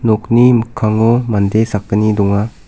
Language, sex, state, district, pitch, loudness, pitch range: Garo, male, Meghalaya, South Garo Hills, 110 Hz, -13 LUFS, 105-115 Hz